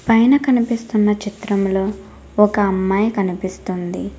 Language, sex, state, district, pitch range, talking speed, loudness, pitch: Telugu, female, Telangana, Hyderabad, 195-225 Hz, 85 wpm, -18 LUFS, 205 Hz